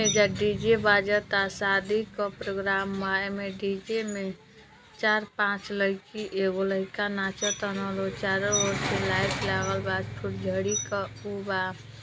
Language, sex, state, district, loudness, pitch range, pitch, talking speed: Bhojpuri, female, Uttar Pradesh, Deoria, -27 LUFS, 195-205 Hz, 195 Hz, 135 wpm